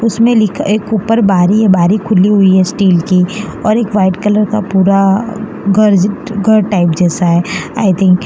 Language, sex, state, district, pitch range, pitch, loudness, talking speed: Hindi, female, Gujarat, Valsad, 190-215 Hz, 200 Hz, -11 LUFS, 190 wpm